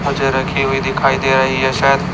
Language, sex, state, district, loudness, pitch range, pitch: Hindi, male, Chhattisgarh, Raipur, -15 LUFS, 130-140 Hz, 135 Hz